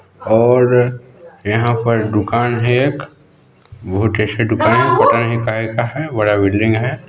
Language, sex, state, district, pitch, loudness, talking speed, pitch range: Hindi, male, Chhattisgarh, Balrampur, 115 Hz, -15 LUFS, 160 wpm, 110-125 Hz